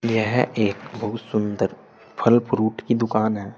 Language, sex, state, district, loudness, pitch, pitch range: Hindi, male, Uttar Pradesh, Saharanpur, -22 LUFS, 110 Hz, 105-115 Hz